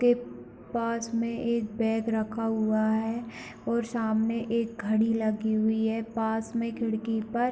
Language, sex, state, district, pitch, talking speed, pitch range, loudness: Hindi, female, Bihar, Supaul, 225 Hz, 160 wpm, 220-230 Hz, -29 LUFS